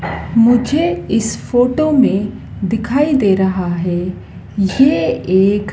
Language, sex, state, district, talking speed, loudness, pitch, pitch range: Hindi, female, Madhya Pradesh, Dhar, 105 wpm, -15 LUFS, 210 Hz, 190-260 Hz